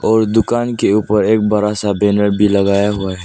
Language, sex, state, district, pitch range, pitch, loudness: Hindi, male, Arunachal Pradesh, Lower Dibang Valley, 100-110 Hz, 105 Hz, -14 LUFS